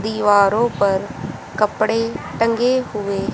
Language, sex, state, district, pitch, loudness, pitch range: Hindi, female, Haryana, Rohtak, 215 Hz, -18 LUFS, 200-230 Hz